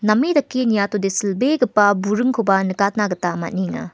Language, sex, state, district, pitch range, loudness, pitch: Garo, female, Meghalaya, West Garo Hills, 195-240 Hz, -19 LUFS, 205 Hz